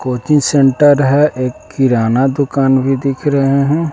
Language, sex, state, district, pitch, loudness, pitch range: Hindi, male, Bihar, West Champaran, 135 Hz, -13 LUFS, 130-145 Hz